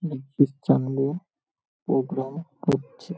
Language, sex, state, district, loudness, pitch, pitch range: Bengali, male, West Bengal, Paschim Medinipur, -25 LUFS, 140 Hz, 135-160 Hz